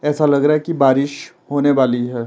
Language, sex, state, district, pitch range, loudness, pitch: Hindi, male, Himachal Pradesh, Shimla, 130-150 Hz, -16 LUFS, 140 Hz